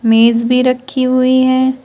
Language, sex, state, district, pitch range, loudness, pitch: Hindi, female, Uttar Pradesh, Shamli, 240-260 Hz, -12 LUFS, 255 Hz